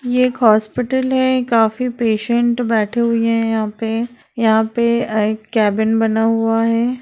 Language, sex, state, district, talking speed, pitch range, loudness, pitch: Hindi, female, Bihar, Darbhanga, 155 wpm, 220-245 Hz, -16 LUFS, 230 Hz